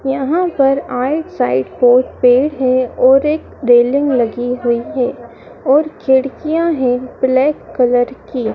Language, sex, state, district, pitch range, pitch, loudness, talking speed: Hindi, female, Madhya Pradesh, Dhar, 245-280 Hz, 260 Hz, -14 LUFS, 135 wpm